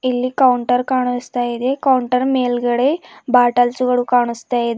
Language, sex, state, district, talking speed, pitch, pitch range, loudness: Kannada, female, Karnataka, Bidar, 125 wpm, 245 Hz, 245-255 Hz, -17 LUFS